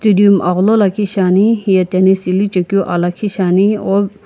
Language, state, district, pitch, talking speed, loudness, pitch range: Sumi, Nagaland, Kohima, 195 Hz, 170 wpm, -13 LUFS, 185-205 Hz